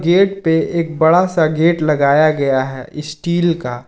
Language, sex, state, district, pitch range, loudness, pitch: Hindi, male, Jharkhand, Ranchi, 145-170 Hz, -15 LUFS, 160 Hz